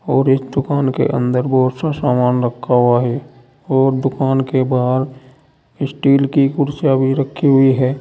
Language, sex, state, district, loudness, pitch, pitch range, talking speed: Hindi, male, Uttar Pradesh, Saharanpur, -16 LUFS, 135 Hz, 130-140 Hz, 165 wpm